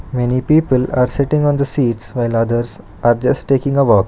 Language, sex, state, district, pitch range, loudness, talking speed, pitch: English, male, Karnataka, Bangalore, 120-140 Hz, -15 LUFS, 205 wpm, 125 Hz